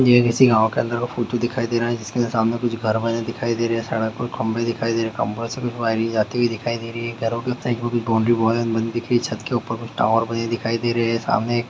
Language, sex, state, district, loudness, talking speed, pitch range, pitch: Hindi, male, Bihar, Sitamarhi, -21 LUFS, 230 wpm, 115-120 Hz, 115 Hz